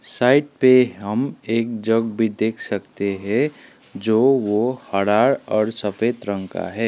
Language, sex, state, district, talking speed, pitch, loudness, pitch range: Hindi, male, Sikkim, Gangtok, 150 wpm, 110 Hz, -20 LUFS, 105-120 Hz